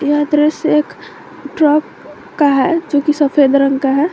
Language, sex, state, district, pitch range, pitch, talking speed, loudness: Hindi, female, Jharkhand, Garhwa, 285-305 Hz, 295 Hz, 175 wpm, -13 LUFS